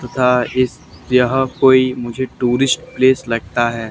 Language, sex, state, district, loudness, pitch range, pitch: Hindi, male, Haryana, Charkhi Dadri, -16 LUFS, 120-130 Hz, 125 Hz